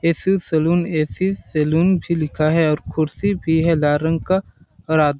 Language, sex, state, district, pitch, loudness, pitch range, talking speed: Hindi, male, Chhattisgarh, Balrampur, 160 Hz, -19 LUFS, 155-175 Hz, 185 wpm